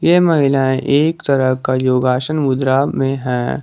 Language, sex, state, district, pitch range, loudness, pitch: Hindi, male, Jharkhand, Garhwa, 130-145 Hz, -15 LUFS, 135 Hz